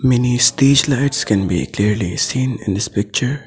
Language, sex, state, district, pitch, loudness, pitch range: English, male, Assam, Sonitpur, 120 Hz, -16 LUFS, 100-135 Hz